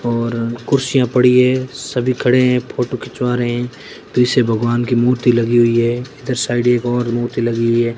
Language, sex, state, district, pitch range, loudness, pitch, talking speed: Hindi, male, Rajasthan, Barmer, 120-125 Hz, -16 LUFS, 120 Hz, 190 wpm